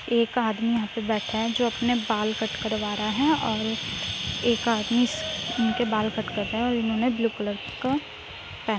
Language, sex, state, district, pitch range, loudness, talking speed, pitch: Hindi, female, Uttar Pradesh, Muzaffarnagar, 220-240 Hz, -26 LUFS, 205 wpm, 225 Hz